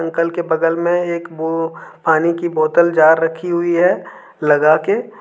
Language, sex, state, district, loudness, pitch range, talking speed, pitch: Hindi, male, Jharkhand, Deoghar, -16 LUFS, 160-170 Hz, 175 wpm, 165 Hz